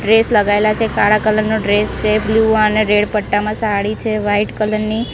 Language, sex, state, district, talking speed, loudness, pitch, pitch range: Gujarati, female, Gujarat, Gandhinagar, 200 wpm, -15 LUFS, 215 Hz, 210-220 Hz